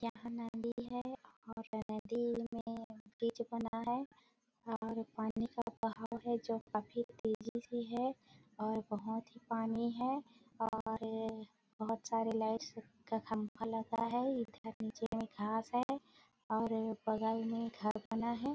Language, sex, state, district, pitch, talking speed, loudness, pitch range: Hindi, female, Chhattisgarh, Bilaspur, 225 Hz, 140 wpm, -40 LUFS, 220-235 Hz